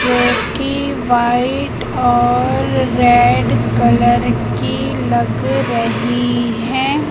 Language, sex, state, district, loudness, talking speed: Hindi, female, Madhya Pradesh, Katni, -15 LUFS, 85 wpm